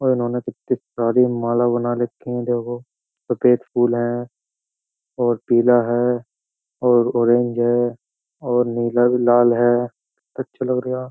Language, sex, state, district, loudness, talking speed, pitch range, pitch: Hindi, male, Uttar Pradesh, Jyotiba Phule Nagar, -19 LUFS, 145 wpm, 120-125 Hz, 120 Hz